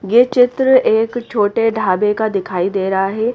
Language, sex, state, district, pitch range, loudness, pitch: Hindi, female, Haryana, Rohtak, 195-240 Hz, -15 LUFS, 220 Hz